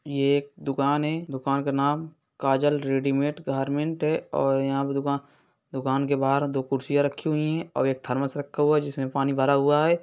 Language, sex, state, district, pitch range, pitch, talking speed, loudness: Hindi, male, Bihar, East Champaran, 135-145 Hz, 140 Hz, 205 wpm, -25 LUFS